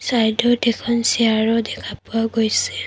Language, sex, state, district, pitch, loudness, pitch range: Assamese, female, Assam, Kamrup Metropolitan, 225 Hz, -19 LUFS, 220-235 Hz